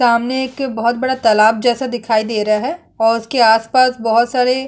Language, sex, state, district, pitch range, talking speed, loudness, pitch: Hindi, female, Chhattisgarh, Kabirdham, 225-255 Hz, 190 wpm, -15 LUFS, 240 Hz